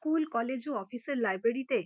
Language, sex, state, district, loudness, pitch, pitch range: Bengali, female, West Bengal, North 24 Parganas, -32 LUFS, 260 Hz, 235-300 Hz